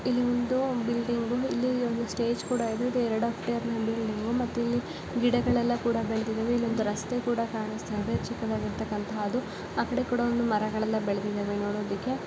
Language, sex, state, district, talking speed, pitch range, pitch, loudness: Kannada, female, Karnataka, Gulbarga, 125 wpm, 215-245 Hz, 235 Hz, -29 LUFS